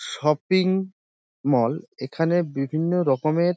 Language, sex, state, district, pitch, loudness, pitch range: Bengali, male, West Bengal, Dakshin Dinajpur, 165 Hz, -23 LUFS, 150-180 Hz